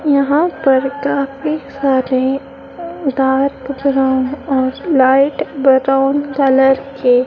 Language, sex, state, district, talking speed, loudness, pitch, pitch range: Hindi, female, Madhya Pradesh, Dhar, 90 wpm, -15 LUFS, 275 Hz, 265-280 Hz